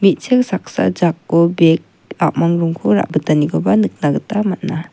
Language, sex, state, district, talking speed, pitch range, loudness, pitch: Garo, female, Meghalaya, West Garo Hills, 120 wpm, 160-195 Hz, -16 LUFS, 170 Hz